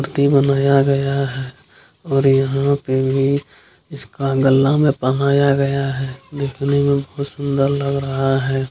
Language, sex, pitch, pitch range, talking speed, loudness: Maithili, male, 140 Hz, 135-140 Hz, 145 wpm, -17 LUFS